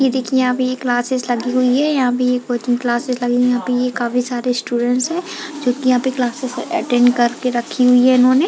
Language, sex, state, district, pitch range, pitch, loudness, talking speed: Hindi, female, Chhattisgarh, Raigarh, 245-255 Hz, 250 Hz, -17 LUFS, 235 wpm